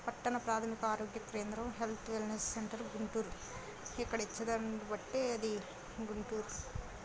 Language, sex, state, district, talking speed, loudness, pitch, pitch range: Telugu, female, Andhra Pradesh, Guntur, 110 wpm, -40 LUFS, 225 Hz, 215-230 Hz